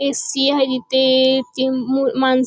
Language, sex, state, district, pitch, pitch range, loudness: Marathi, female, Maharashtra, Chandrapur, 260 Hz, 260-270 Hz, -17 LUFS